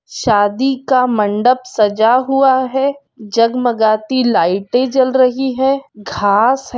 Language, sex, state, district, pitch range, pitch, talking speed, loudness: Hindi, female, Bihar, Darbhanga, 215-265 Hz, 250 Hz, 115 wpm, -14 LUFS